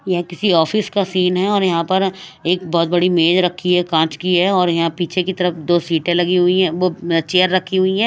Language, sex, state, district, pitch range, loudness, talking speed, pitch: Hindi, female, Odisha, Malkangiri, 170-185 Hz, -17 LUFS, 245 wpm, 180 Hz